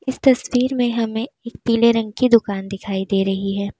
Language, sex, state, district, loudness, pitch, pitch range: Hindi, female, Uttar Pradesh, Lalitpur, -19 LUFS, 230 Hz, 195-245 Hz